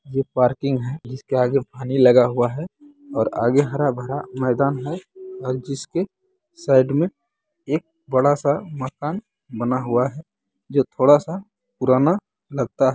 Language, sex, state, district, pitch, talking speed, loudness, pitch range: Hindi, male, Bihar, Muzaffarpur, 140 Hz, 140 wpm, -21 LUFS, 130-185 Hz